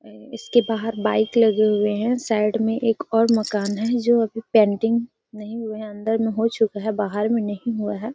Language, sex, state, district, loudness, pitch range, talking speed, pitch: Hindi, female, Bihar, Gaya, -21 LUFS, 210-230 Hz, 205 wpm, 220 Hz